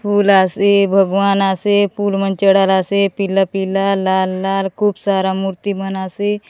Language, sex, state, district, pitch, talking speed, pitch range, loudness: Halbi, female, Chhattisgarh, Bastar, 195 Hz, 140 wpm, 190-200 Hz, -15 LUFS